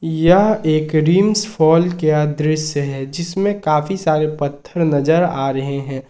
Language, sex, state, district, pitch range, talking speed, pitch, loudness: Hindi, male, Jharkhand, Ranchi, 145-175 Hz, 145 wpm, 155 Hz, -17 LUFS